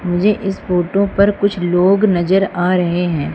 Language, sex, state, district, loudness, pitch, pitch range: Hindi, female, Madhya Pradesh, Umaria, -15 LUFS, 185 Hz, 175-200 Hz